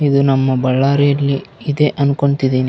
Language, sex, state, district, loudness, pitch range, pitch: Kannada, male, Karnataka, Bellary, -15 LUFS, 135-140 Hz, 140 Hz